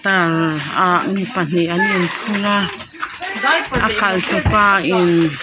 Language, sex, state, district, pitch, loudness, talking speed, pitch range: Mizo, female, Mizoram, Aizawl, 185 Hz, -16 LUFS, 145 wpm, 170-205 Hz